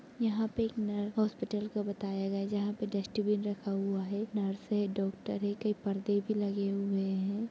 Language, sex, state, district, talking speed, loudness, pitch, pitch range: Hindi, female, Chhattisgarh, Raigarh, 200 wpm, -34 LUFS, 205 Hz, 200-215 Hz